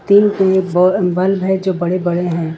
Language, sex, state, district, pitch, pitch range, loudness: Hindi, female, Jharkhand, Ranchi, 185 Hz, 175-190 Hz, -15 LUFS